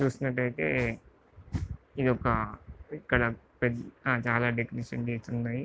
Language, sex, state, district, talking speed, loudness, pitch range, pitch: Telugu, male, Andhra Pradesh, Visakhapatnam, 95 wpm, -30 LUFS, 115-125 Hz, 120 Hz